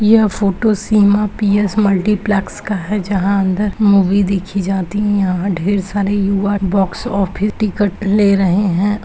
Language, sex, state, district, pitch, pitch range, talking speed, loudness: Hindi, female, Uttar Pradesh, Etah, 200 Hz, 195-210 Hz, 145 wpm, -15 LUFS